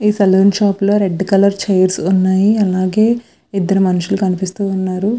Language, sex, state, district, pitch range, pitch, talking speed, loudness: Telugu, female, Andhra Pradesh, Visakhapatnam, 185-205 Hz, 195 Hz, 140 wpm, -14 LUFS